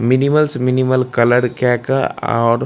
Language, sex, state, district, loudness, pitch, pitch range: Maithili, male, Bihar, Darbhanga, -15 LUFS, 125 Hz, 120-130 Hz